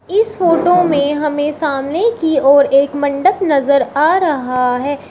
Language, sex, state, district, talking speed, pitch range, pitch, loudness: Hindi, female, Uttar Pradesh, Shamli, 155 wpm, 280-350 Hz, 295 Hz, -14 LUFS